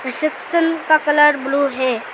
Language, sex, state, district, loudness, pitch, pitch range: Hindi, female, Arunachal Pradesh, Lower Dibang Valley, -16 LUFS, 295 Hz, 265-310 Hz